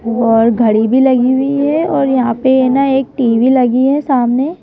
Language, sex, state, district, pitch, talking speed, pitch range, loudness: Hindi, female, Madhya Pradesh, Bhopal, 260 Hz, 195 wpm, 240-270 Hz, -12 LUFS